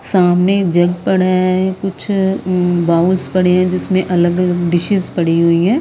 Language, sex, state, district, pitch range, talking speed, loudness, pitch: Hindi, female, Himachal Pradesh, Shimla, 175-190 Hz, 155 wpm, -14 LUFS, 180 Hz